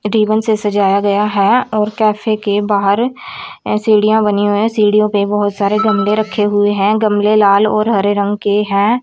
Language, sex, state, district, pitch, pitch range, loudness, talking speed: Hindi, female, Haryana, Rohtak, 210 Hz, 205-215 Hz, -13 LUFS, 180 wpm